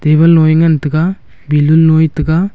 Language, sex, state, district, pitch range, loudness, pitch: Wancho, male, Arunachal Pradesh, Longding, 155-165 Hz, -10 LUFS, 160 Hz